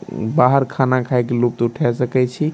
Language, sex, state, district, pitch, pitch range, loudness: Maithili, male, Bihar, Darbhanga, 125 Hz, 120-130 Hz, -18 LUFS